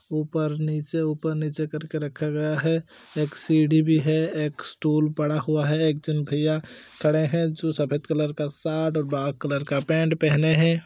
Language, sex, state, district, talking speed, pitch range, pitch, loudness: Hindi, male, Chhattisgarh, Bastar, 180 wpm, 150-160 Hz, 155 Hz, -24 LUFS